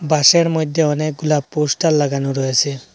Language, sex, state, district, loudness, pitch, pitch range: Bengali, male, Assam, Hailakandi, -16 LUFS, 150 Hz, 140-155 Hz